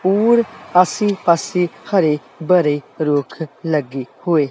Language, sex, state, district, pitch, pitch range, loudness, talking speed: Punjabi, male, Punjab, Kapurthala, 165 Hz, 150-185 Hz, -17 LUFS, 105 wpm